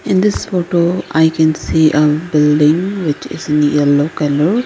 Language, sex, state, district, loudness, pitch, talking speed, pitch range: English, female, Arunachal Pradesh, Lower Dibang Valley, -14 LUFS, 155 Hz, 165 wpm, 150-175 Hz